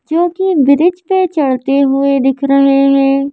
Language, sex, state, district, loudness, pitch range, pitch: Hindi, female, Madhya Pradesh, Bhopal, -12 LUFS, 275-345 Hz, 275 Hz